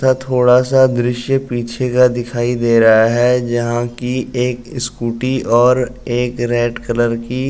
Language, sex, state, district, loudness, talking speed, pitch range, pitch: Hindi, male, Uttar Pradesh, Jalaun, -15 LUFS, 160 wpm, 120-125 Hz, 120 Hz